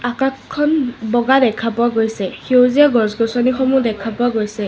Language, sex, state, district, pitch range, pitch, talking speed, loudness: Assamese, female, Assam, Sonitpur, 225-260 Hz, 240 Hz, 140 wpm, -16 LUFS